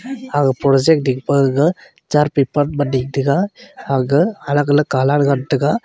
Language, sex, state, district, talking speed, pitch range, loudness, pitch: Wancho, male, Arunachal Pradesh, Longding, 155 wpm, 135-160 Hz, -16 LUFS, 145 Hz